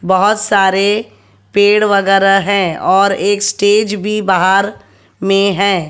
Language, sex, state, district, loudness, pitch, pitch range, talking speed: Hindi, female, Haryana, Jhajjar, -12 LUFS, 200 Hz, 190-205 Hz, 120 wpm